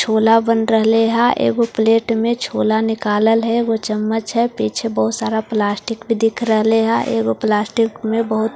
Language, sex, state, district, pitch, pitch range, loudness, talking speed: Hindi, female, Bihar, Katihar, 225 Hz, 215-230 Hz, -17 LUFS, 155 wpm